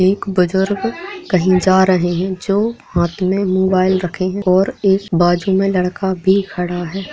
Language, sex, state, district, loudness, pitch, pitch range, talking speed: Hindi, male, Bihar, Lakhisarai, -16 LUFS, 190 Hz, 185-195 Hz, 170 wpm